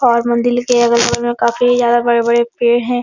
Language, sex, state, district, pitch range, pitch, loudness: Hindi, female, Bihar, Araria, 235-245 Hz, 240 Hz, -13 LUFS